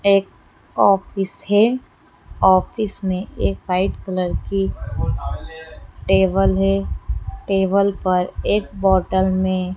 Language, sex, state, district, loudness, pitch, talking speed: Hindi, female, Madhya Pradesh, Dhar, -19 LUFS, 185 Hz, 100 wpm